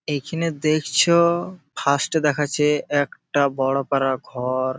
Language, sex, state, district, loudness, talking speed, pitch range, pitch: Bengali, male, West Bengal, Malda, -21 LUFS, 100 wpm, 135-155 Hz, 145 Hz